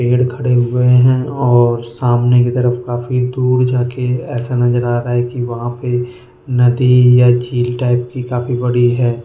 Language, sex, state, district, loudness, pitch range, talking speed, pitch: Hindi, male, Goa, North and South Goa, -14 LUFS, 120-125 Hz, 180 wpm, 125 Hz